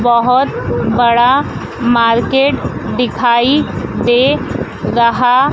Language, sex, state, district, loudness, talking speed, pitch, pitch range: Hindi, female, Madhya Pradesh, Dhar, -13 LUFS, 65 wpm, 245 Hz, 235-260 Hz